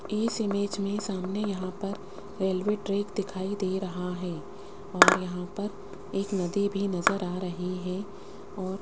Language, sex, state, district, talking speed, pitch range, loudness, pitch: Hindi, female, Rajasthan, Jaipur, 165 wpm, 185-200 Hz, -29 LUFS, 195 Hz